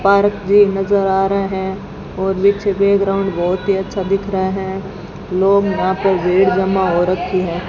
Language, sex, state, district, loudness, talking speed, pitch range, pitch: Hindi, female, Rajasthan, Bikaner, -16 LUFS, 180 wpm, 190-195 Hz, 195 Hz